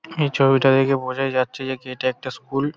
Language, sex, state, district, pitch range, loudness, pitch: Bengali, male, West Bengal, Paschim Medinipur, 130-135 Hz, -20 LUFS, 135 Hz